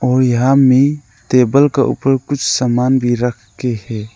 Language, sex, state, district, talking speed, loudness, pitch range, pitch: Hindi, male, Arunachal Pradesh, Lower Dibang Valley, 145 wpm, -14 LUFS, 120-135 Hz, 125 Hz